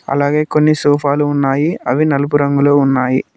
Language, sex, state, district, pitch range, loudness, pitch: Telugu, male, Telangana, Mahabubabad, 140-150 Hz, -14 LUFS, 145 Hz